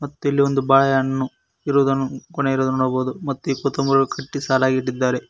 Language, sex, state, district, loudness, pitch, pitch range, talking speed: Kannada, male, Karnataka, Koppal, -20 LUFS, 135 Hz, 130-140 Hz, 135 wpm